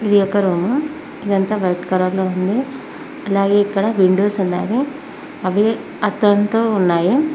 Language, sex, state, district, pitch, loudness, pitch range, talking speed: Telugu, female, Telangana, Mahabubabad, 205 Hz, -17 LUFS, 190-230 Hz, 120 wpm